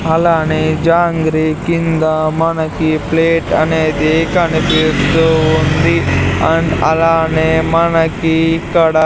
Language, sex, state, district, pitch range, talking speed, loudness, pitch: Telugu, male, Andhra Pradesh, Sri Satya Sai, 155-165 Hz, 85 wpm, -13 LUFS, 160 Hz